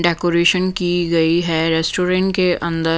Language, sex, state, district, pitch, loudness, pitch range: Hindi, female, Punjab, Pathankot, 175 Hz, -17 LUFS, 165-180 Hz